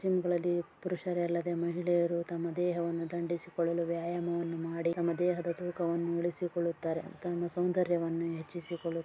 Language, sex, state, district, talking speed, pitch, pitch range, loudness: Kannada, female, Karnataka, Dharwad, 105 wpm, 170 Hz, 170-175 Hz, -34 LUFS